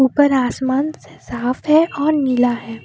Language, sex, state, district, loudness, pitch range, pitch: Hindi, female, Jharkhand, Deoghar, -17 LUFS, 245-290 Hz, 265 Hz